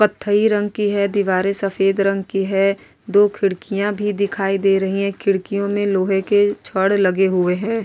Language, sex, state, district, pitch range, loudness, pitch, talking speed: Hindi, female, Goa, North and South Goa, 195-205 Hz, -18 LUFS, 200 Hz, 185 wpm